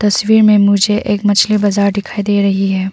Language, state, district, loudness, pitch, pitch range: Hindi, Arunachal Pradesh, Papum Pare, -12 LUFS, 205 Hz, 200-210 Hz